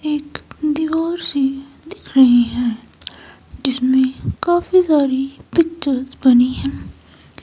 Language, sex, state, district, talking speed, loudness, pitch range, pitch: Hindi, female, Himachal Pradesh, Shimla, 95 wpm, -17 LUFS, 250-315 Hz, 270 Hz